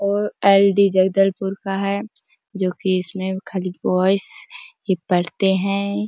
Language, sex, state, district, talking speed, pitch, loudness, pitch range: Hindi, female, Chhattisgarh, Bastar, 110 wpm, 195 Hz, -19 LUFS, 185-200 Hz